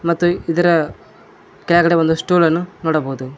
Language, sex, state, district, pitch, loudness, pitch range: Kannada, male, Karnataka, Koppal, 170 Hz, -16 LUFS, 160-175 Hz